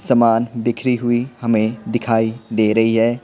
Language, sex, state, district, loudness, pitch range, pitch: Hindi, male, Bihar, Patna, -18 LUFS, 115-120 Hz, 115 Hz